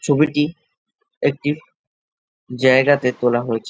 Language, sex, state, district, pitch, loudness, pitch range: Bengali, male, West Bengal, Jhargram, 140 Hz, -18 LUFS, 125-150 Hz